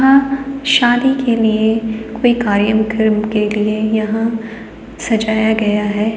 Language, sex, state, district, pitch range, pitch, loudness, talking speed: Hindi, female, Uttar Pradesh, Jalaun, 215-240 Hz, 220 Hz, -15 LUFS, 115 wpm